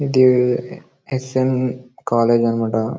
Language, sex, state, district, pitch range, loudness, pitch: Telugu, male, Karnataka, Bellary, 115-130 Hz, -18 LUFS, 125 Hz